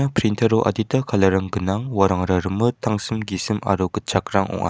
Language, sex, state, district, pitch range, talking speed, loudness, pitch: Garo, male, Meghalaya, West Garo Hills, 95-110 Hz, 140 wpm, -21 LUFS, 105 Hz